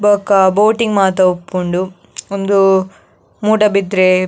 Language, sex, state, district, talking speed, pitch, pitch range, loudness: Tulu, female, Karnataka, Dakshina Kannada, 85 wpm, 195 Hz, 185-205 Hz, -13 LUFS